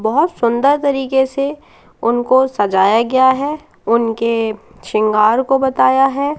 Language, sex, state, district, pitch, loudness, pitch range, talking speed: Hindi, female, Madhya Pradesh, Katni, 260 Hz, -15 LUFS, 225-270 Hz, 120 wpm